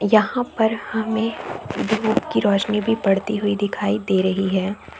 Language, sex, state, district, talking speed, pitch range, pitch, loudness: Hindi, female, Chhattisgarh, Bilaspur, 155 wpm, 195-220 Hz, 210 Hz, -21 LUFS